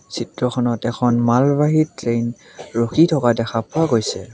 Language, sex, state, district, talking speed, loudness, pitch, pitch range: Assamese, male, Assam, Kamrup Metropolitan, 125 wpm, -19 LUFS, 120 Hz, 115-145 Hz